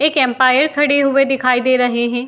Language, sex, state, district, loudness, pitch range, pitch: Hindi, female, Uttar Pradesh, Jyotiba Phule Nagar, -14 LUFS, 250-280 Hz, 260 Hz